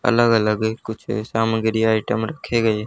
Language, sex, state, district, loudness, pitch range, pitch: Hindi, male, Haryana, Charkhi Dadri, -20 LUFS, 110-115 Hz, 110 Hz